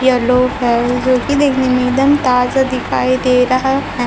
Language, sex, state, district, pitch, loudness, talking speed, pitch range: Hindi, female, Chhattisgarh, Raipur, 255 Hz, -14 LUFS, 190 wpm, 250-265 Hz